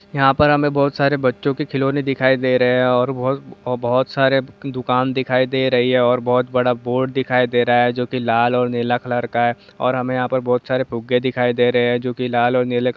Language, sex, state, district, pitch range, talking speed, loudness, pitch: Hindi, male, Jharkhand, Jamtara, 125-130 Hz, 235 wpm, -18 LUFS, 125 Hz